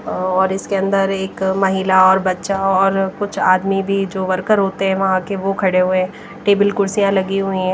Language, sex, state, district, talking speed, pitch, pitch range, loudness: Hindi, female, Himachal Pradesh, Shimla, 200 wpm, 195 Hz, 190-195 Hz, -17 LUFS